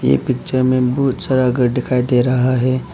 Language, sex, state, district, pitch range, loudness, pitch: Hindi, male, Arunachal Pradesh, Papum Pare, 125-130 Hz, -16 LUFS, 125 Hz